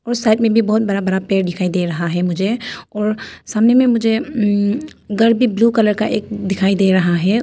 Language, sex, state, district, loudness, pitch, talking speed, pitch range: Hindi, female, Arunachal Pradesh, Papum Pare, -16 LUFS, 210 Hz, 225 wpm, 190-230 Hz